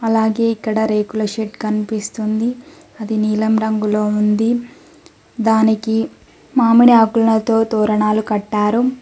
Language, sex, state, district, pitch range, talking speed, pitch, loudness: Telugu, female, Telangana, Mahabubabad, 215-230 Hz, 95 wpm, 220 Hz, -16 LUFS